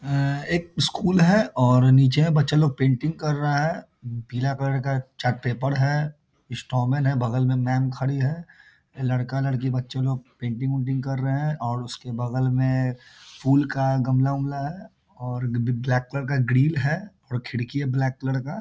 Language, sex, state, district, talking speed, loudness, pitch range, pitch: Hindi, male, Bihar, Muzaffarpur, 175 wpm, -23 LUFS, 125-145 Hz, 135 Hz